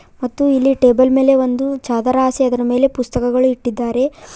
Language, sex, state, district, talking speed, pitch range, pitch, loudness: Kannada, female, Karnataka, Koppal, 150 wpm, 245-265 Hz, 255 Hz, -15 LUFS